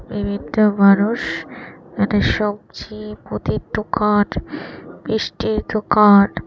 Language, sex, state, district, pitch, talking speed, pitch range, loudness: Bengali, female, Tripura, West Tripura, 210 Hz, 85 wpm, 200-215 Hz, -18 LUFS